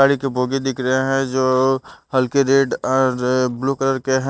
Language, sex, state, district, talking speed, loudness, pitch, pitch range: Hindi, male, Bihar, Kaimur, 195 wpm, -19 LUFS, 130 Hz, 130-135 Hz